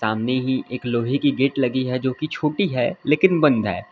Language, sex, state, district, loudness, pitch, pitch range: Hindi, male, Uttar Pradesh, Lalitpur, -21 LUFS, 130 Hz, 125-150 Hz